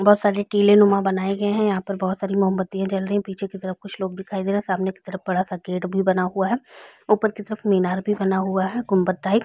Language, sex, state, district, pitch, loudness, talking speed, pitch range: Hindi, female, Chhattisgarh, Raigarh, 195 Hz, -22 LUFS, 275 wpm, 190-205 Hz